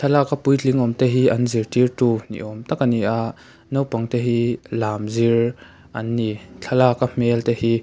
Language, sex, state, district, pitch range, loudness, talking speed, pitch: Mizo, male, Mizoram, Aizawl, 115-125 Hz, -20 LUFS, 175 wpm, 115 Hz